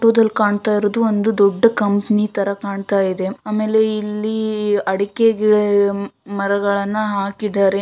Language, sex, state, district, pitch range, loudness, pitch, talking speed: Kannada, female, Karnataka, Shimoga, 200-215 Hz, -18 LUFS, 205 Hz, 105 wpm